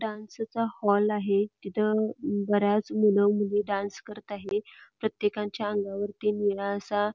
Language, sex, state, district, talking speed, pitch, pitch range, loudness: Marathi, female, Karnataka, Belgaum, 125 wpm, 205 Hz, 205-215 Hz, -28 LUFS